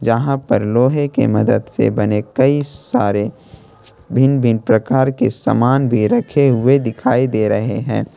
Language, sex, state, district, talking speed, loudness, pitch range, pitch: Hindi, male, Jharkhand, Ranchi, 155 wpm, -15 LUFS, 110-135 Hz, 120 Hz